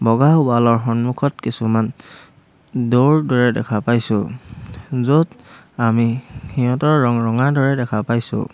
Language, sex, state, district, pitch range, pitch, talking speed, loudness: Assamese, male, Assam, Hailakandi, 115-135 Hz, 120 Hz, 120 wpm, -17 LUFS